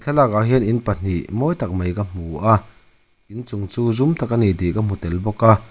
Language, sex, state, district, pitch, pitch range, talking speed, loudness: Mizo, male, Mizoram, Aizawl, 110 Hz, 95-115 Hz, 240 wpm, -19 LUFS